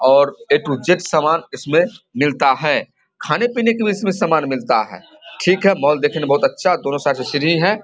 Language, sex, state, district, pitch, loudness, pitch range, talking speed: Hindi, male, Bihar, Vaishali, 165 Hz, -17 LUFS, 145-195 Hz, 205 wpm